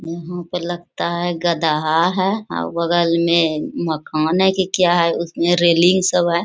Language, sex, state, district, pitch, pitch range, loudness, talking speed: Hindi, female, Bihar, Bhagalpur, 170 Hz, 165-175 Hz, -18 LUFS, 170 wpm